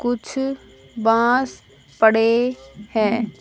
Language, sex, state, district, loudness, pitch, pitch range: Hindi, female, Haryana, Rohtak, -20 LUFS, 230 Hz, 220-245 Hz